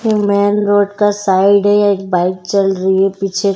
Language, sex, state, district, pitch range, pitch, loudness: Hindi, female, Delhi, New Delhi, 190-205 Hz, 200 Hz, -13 LUFS